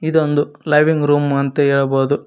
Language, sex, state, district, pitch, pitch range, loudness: Kannada, male, Karnataka, Koppal, 145 Hz, 140-150 Hz, -16 LUFS